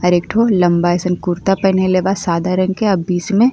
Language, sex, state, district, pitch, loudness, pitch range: Bhojpuri, female, Uttar Pradesh, Ghazipur, 185 Hz, -15 LUFS, 175-195 Hz